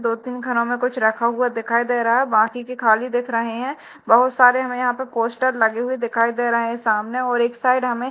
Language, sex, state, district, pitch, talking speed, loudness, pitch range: Hindi, female, Madhya Pradesh, Dhar, 240 Hz, 250 wpm, -19 LUFS, 230-250 Hz